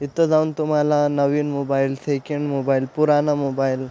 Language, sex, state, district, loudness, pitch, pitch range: Marathi, male, Maharashtra, Aurangabad, -20 LUFS, 145 Hz, 135-150 Hz